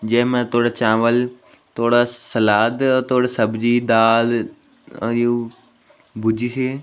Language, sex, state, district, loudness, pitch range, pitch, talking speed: Garhwali, male, Uttarakhand, Tehri Garhwal, -18 LUFS, 115-125 Hz, 120 Hz, 115 wpm